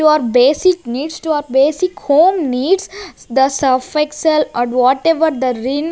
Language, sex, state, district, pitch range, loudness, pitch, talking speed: English, female, Chandigarh, Chandigarh, 260-325 Hz, -15 LUFS, 295 Hz, 150 wpm